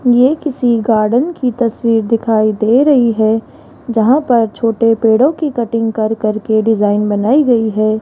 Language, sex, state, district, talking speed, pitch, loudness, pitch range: Hindi, female, Rajasthan, Jaipur, 165 wpm, 230 Hz, -13 LUFS, 220-250 Hz